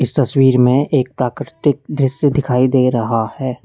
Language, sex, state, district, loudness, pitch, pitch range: Hindi, male, Uttar Pradesh, Lalitpur, -15 LUFS, 130 Hz, 125-145 Hz